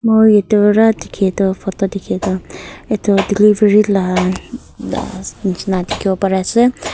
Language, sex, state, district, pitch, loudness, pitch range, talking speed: Nagamese, female, Nagaland, Kohima, 200 Hz, -15 LUFS, 190-210 Hz, 140 wpm